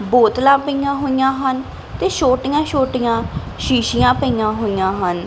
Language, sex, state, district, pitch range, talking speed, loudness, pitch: Punjabi, female, Punjab, Kapurthala, 220-275 Hz, 125 wpm, -17 LUFS, 255 Hz